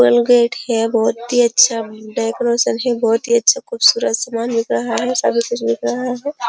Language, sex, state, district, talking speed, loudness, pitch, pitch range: Hindi, female, Uttar Pradesh, Jyotiba Phule Nagar, 185 wpm, -16 LUFS, 235 Hz, 230-245 Hz